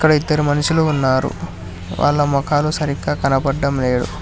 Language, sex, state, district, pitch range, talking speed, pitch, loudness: Telugu, male, Telangana, Hyderabad, 125-150 Hz, 130 wpm, 140 Hz, -17 LUFS